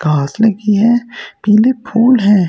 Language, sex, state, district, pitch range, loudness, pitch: Hindi, male, Delhi, New Delhi, 205-235 Hz, -12 LUFS, 215 Hz